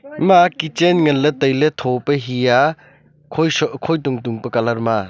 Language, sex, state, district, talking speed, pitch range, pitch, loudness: Wancho, male, Arunachal Pradesh, Longding, 190 wpm, 125-160 Hz, 145 Hz, -17 LUFS